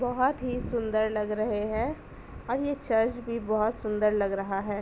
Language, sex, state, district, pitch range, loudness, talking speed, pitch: Hindi, female, Uttar Pradesh, Etah, 210-245 Hz, -29 LUFS, 185 wpm, 220 Hz